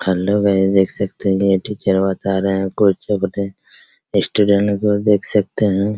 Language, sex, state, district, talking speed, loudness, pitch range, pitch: Hindi, male, Bihar, Araria, 170 wpm, -17 LUFS, 95-105 Hz, 100 Hz